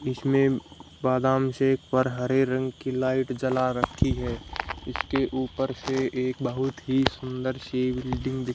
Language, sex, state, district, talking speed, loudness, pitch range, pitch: Hindi, male, Haryana, Rohtak, 145 wpm, -27 LUFS, 130-135 Hz, 130 Hz